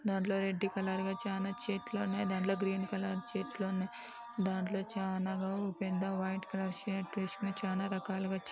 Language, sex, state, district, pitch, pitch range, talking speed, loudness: Telugu, female, Andhra Pradesh, Anantapur, 195 Hz, 190-195 Hz, 170 wpm, -37 LUFS